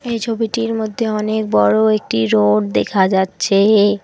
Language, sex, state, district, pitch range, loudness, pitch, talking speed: Bengali, female, West Bengal, Alipurduar, 175-220 Hz, -16 LUFS, 210 Hz, 135 wpm